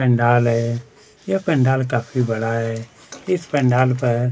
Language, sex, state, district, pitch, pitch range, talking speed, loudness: Hindi, male, Chhattisgarh, Kabirdham, 125 Hz, 115-140 Hz, 140 wpm, -19 LUFS